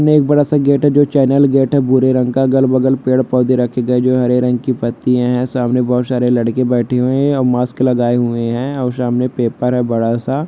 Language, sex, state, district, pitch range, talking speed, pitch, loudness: Hindi, male, Jharkhand, Jamtara, 125-135 Hz, 250 wpm, 125 Hz, -14 LUFS